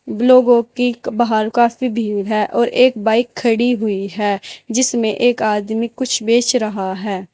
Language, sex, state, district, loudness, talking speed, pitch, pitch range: Hindi, female, Uttar Pradesh, Saharanpur, -16 LUFS, 155 wpm, 230 Hz, 215-245 Hz